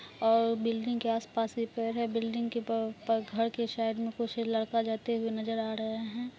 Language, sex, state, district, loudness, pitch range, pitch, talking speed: Hindi, female, Bihar, Araria, -32 LUFS, 225-230 Hz, 230 Hz, 205 wpm